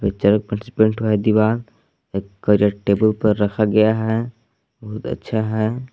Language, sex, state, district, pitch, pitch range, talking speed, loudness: Hindi, male, Jharkhand, Palamu, 110 Hz, 105-110 Hz, 120 wpm, -19 LUFS